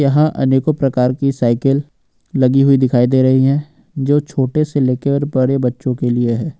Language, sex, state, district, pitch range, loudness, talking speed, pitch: Hindi, male, Jharkhand, Ranchi, 130-140 Hz, -15 LUFS, 190 wpm, 135 Hz